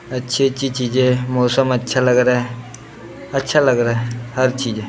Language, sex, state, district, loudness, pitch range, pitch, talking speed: Hindi, male, Maharashtra, Gondia, -17 LUFS, 120-130 Hz, 125 Hz, 170 wpm